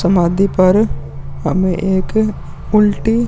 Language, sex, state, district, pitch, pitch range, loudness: Hindi, male, Bihar, Vaishali, 190 Hz, 175-210 Hz, -15 LUFS